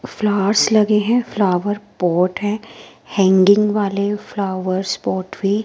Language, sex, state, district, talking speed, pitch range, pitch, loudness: Hindi, female, Himachal Pradesh, Shimla, 125 wpm, 190-210 Hz, 205 Hz, -18 LUFS